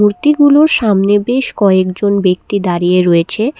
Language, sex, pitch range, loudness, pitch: Bengali, female, 185-245 Hz, -12 LUFS, 205 Hz